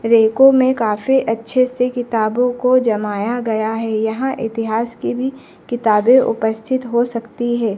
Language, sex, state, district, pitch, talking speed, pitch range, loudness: Hindi, female, Madhya Pradesh, Dhar, 235 Hz, 145 wpm, 220-255 Hz, -17 LUFS